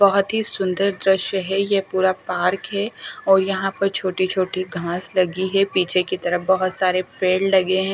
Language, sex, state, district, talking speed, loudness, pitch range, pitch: Hindi, female, Haryana, Charkhi Dadri, 195 wpm, -20 LUFS, 185-195 Hz, 190 Hz